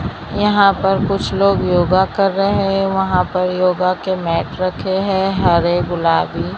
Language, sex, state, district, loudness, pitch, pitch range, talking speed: Hindi, female, Maharashtra, Mumbai Suburban, -16 LUFS, 190 Hz, 180-195 Hz, 155 wpm